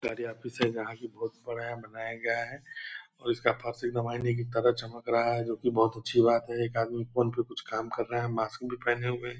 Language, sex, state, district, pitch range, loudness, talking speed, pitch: Hindi, male, Bihar, Purnia, 115-120 Hz, -31 LUFS, 260 wpm, 120 Hz